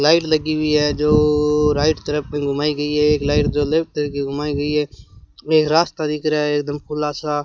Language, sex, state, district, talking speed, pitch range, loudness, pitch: Hindi, male, Rajasthan, Bikaner, 225 wpm, 145-150 Hz, -19 LUFS, 150 Hz